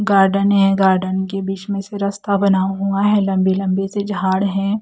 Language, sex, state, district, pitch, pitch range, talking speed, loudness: Hindi, female, Chhattisgarh, Raipur, 195 Hz, 195-200 Hz, 200 wpm, -17 LUFS